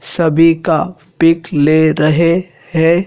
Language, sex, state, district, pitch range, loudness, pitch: Hindi, male, Madhya Pradesh, Dhar, 160-170 Hz, -13 LUFS, 165 Hz